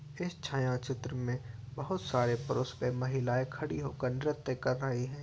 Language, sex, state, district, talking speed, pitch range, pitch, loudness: Hindi, male, Uttar Pradesh, Varanasi, 160 wpm, 125-140 Hz, 130 Hz, -35 LUFS